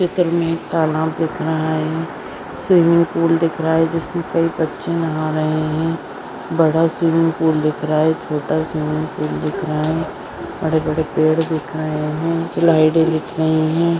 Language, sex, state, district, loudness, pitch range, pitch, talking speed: Hindi, female, Maharashtra, Sindhudurg, -18 LUFS, 155-165 Hz, 160 Hz, 170 wpm